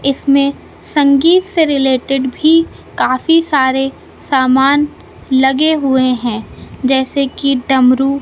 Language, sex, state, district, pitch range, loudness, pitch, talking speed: Hindi, male, Madhya Pradesh, Katni, 265-290 Hz, -13 LUFS, 275 Hz, 100 wpm